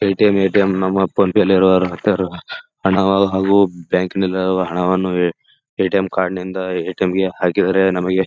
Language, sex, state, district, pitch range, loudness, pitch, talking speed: Kannada, male, Karnataka, Gulbarga, 90-95 Hz, -17 LUFS, 95 Hz, 125 wpm